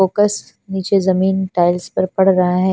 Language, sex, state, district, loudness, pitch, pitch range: Hindi, female, Punjab, Fazilka, -16 LUFS, 190 Hz, 185-190 Hz